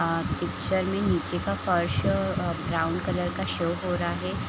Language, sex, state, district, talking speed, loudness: Hindi, female, Chhattisgarh, Raigarh, 185 wpm, -27 LUFS